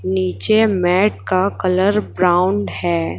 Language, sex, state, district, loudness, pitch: Hindi, female, Chhattisgarh, Raipur, -17 LUFS, 180 Hz